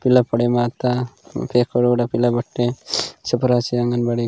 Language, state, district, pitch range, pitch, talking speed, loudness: Gondi, Chhattisgarh, Sukma, 120-125 Hz, 120 Hz, 140 wpm, -20 LUFS